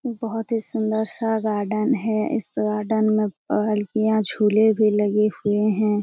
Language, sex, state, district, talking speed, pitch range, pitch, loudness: Hindi, female, Bihar, Jamui, 150 wpm, 210-220 Hz, 215 Hz, -22 LUFS